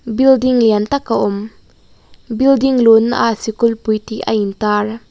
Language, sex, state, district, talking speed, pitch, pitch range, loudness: Mizo, female, Mizoram, Aizawl, 155 wpm, 225 Hz, 215-250 Hz, -14 LUFS